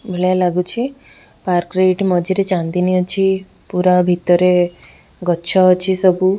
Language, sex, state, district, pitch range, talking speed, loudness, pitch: Odia, female, Odisha, Khordha, 180-190 Hz, 120 wpm, -16 LUFS, 185 Hz